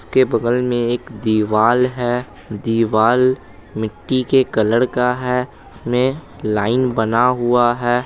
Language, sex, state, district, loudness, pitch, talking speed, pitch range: Hindi, male, Bihar, Madhepura, -17 LUFS, 120 Hz, 125 wpm, 110-125 Hz